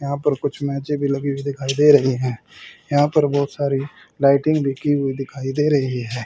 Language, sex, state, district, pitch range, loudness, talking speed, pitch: Hindi, male, Haryana, Rohtak, 135-145 Hz, -20 LUFS, 210 wpm, 140 Hz